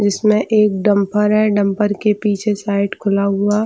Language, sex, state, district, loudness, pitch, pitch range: Hindi, female, Chhattisgarh, Bilaspur, -16 LUFS, 205 Hz, 200-210 Hz